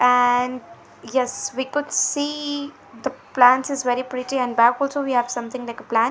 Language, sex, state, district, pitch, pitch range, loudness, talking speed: English, female, Punjab, Fazilka, 255 Hz, 245-275 Hz, -21 LUFS, 185 wpm